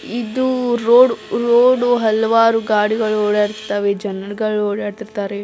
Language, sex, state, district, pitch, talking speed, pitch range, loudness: Kannada, female, Karnataka, Belgaum, 220 Hz, 100 wpm, 210-240 Hz, -16 LUFS